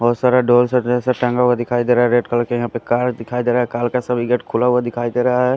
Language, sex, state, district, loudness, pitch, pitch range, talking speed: Hindi, male, Punjab, Fazilka, -17 LUFS, 120 Hz, 120-125 Hz, 345 wpm